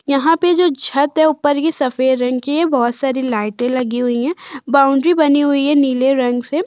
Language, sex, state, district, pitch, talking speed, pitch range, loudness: Hindi, female, Uttar Pradesh, Budaun, 275 Hz, 215 wpm, 255-305 Hz, -15 LUFS